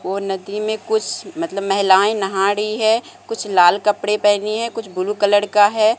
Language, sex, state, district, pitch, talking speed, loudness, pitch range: Hindi, female, Bihar, Katihar, 210 Hz, 190 wpm, -18 LUFS, 195-220 Hz